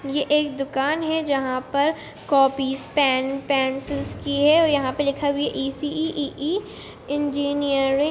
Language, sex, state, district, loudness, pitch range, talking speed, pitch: Hindi, female, Chhattisgarh, Rajnandgaon, -22 LUFS, 275-295 Hz, 185 wpm, 285 Hz